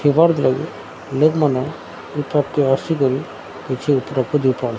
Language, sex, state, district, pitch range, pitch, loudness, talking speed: Odia, male, Odisha, Sambalpur, 130-150 Hz, 140 Hz, -19 LUFS, 90 wpm